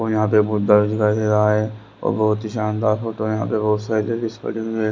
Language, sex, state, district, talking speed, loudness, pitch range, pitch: Hindi, male, Haryana, Rohtak, 195 wpm, -20 LUFS, 105-110 Hz, 110 Hz